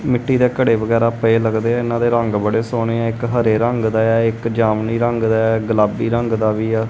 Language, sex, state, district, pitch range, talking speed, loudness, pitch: Punjabi, male, Punjab, Kapurthala, 110-120 Hz, 245 wpm, -17 LUFS, 115 Hz